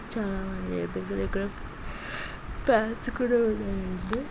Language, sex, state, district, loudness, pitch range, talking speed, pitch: Telugu, female, Andhra Pradesh, Anantapur, -30 LUFS, 140-225 Hz, 85 wpm, 195 Hz